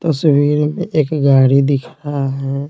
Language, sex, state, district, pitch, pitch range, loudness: Hindi, male, Bihar, Patna, 145 Hz, 140-155 Hz, -15 LUFS